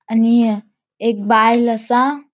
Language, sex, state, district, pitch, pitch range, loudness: Konkani, female, Goa, North and South Goa, 230 Hz, 220-240 Hz, -15 LUFS